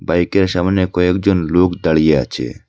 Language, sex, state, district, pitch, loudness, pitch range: Bengali, male, Assam, Hailakandi, 90 Hz, -15 LUFS, 85-95 Hz